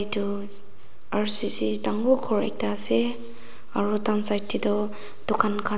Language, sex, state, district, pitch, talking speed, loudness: Nagamese, female, Nagaland, Dimapur, 200 Hz, 135 wpm, -20 LUFS